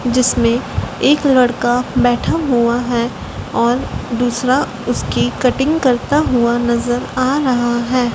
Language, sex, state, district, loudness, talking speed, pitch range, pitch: Hindi, female, Madhya Pradesh, Dhar, -16 LUFS, 120 wpm, 240-255 Hz, 245 Hz